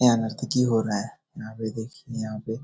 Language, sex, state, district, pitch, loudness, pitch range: Hindi, male, Bihar, Jahanabad, 110 Hz, -27 LUFS, 110-125 Hz